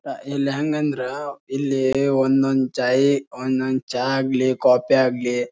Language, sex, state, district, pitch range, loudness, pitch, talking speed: Kannada, male, Karnataka, Bijapur, 130-140 Hz, -21 LUFS, 135 Hz, 130 wpm